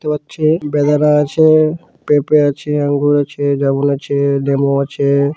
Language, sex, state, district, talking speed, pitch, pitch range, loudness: Bengali, male, West Bengal, Malda, 145 wpm, 145 Hz, 140-150 Hz, -14 LUFS